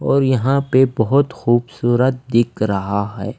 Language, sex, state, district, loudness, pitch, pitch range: Hindi, male, Himachal Pradesh, Shimla, -17 LUFS, 120 Hz, 110-130 Hz